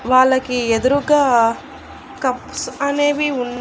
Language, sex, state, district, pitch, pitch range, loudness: Telugu, female, Andhra Pradesh, Annamaya, 260 Hz, 250-280 Hz, -17 LUFS